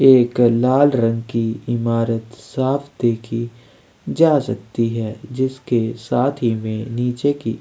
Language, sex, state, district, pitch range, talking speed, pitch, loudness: Hindi, male, Chhattisgarh, Sukma, 115-130 Hz, 125 wpm, 120 Hz, -19 LUFS